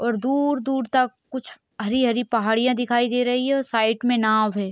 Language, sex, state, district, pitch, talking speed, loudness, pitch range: Hindi, female, Jharkhand, Sahebganj, 245 Hz, 240 wpm, -21 LUFS, 225-260 Hz